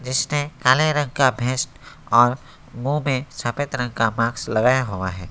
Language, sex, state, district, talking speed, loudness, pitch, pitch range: Hindi, male, West Bengal, Alipurduar, 160 wpm, -21 LUFS, 130 Hz, 120-140 Hz